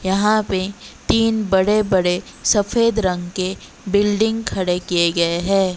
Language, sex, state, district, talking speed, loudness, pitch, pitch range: Hindi, female, Odisha, Malkangiri, 135 wpm, -18 LUFS, 190 Hz, 180-210 Hz